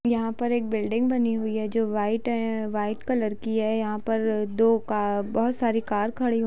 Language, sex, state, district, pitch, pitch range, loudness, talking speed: Hindi, female, Bihar, Sitamarhi, 225 Hz, 215-230 Hz, -26 LUFS, 165 wpm